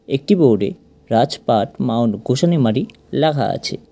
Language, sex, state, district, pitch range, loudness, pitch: Bengali, male, West Bengal, Cooch Behar, 115-135 Hz, -18 LUFS, 125 Hz